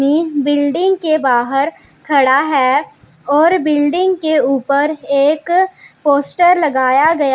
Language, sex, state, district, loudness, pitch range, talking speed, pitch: Hindi, female, Punjab, Pathankot, -14 LUFS, 275-325 Hz, 115 wpm, 290 Hz